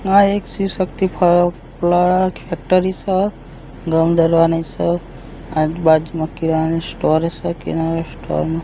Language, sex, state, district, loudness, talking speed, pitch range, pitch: Gujarati, male, Gujarat, Gandhinagar, -17 LUFS, 120 wpm, 160-185 Hz, 165 Hz